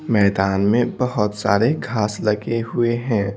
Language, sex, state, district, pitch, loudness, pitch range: Hindi, male, Bihar, Patna, 110 Hz, -20 LUFS, 100-120 Hz